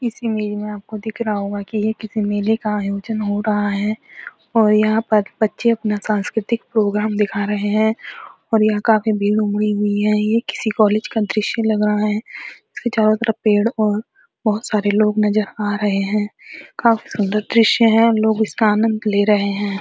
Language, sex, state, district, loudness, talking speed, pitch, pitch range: Hindi, female, Uttarakhand, Uttarkashi, -18 LUFS, 190 wpm, 215 Hz, 210-220 Hz